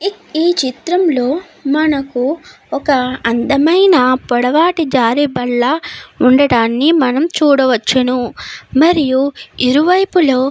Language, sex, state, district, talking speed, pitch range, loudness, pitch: Telugu, female, Andhra Pradesh, Guntur, 75 wpm, 255-325 Hz, -13 LUFS, 280 Hz